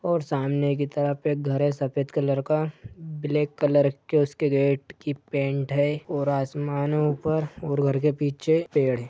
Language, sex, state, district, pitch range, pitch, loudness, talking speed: Hindi, male, Jharkhand, Sahebganj, 140-150 Hz, 145 Hz, -25 LUFS, 180 wpm